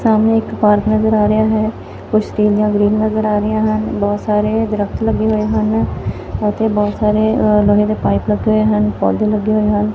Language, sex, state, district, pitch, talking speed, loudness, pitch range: Punjabi, female, Punjab, Fazilka, 210 Hz, 210 wpm, -15 LUFS, 205-215 Hz